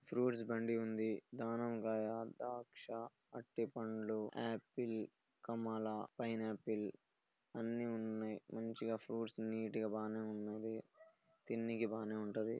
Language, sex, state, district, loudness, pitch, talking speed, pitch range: Telugu, male, Telangana, Nalgonda, -44 LUFS, 115 Hz, 105 wpm, 110-115 Hz